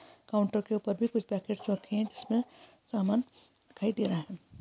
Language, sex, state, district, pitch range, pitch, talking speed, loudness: Hindi, female, Chhattisgarh, Sarguja, 205-225 Hz, 215 Hz, 195 wpm, -32 LUFS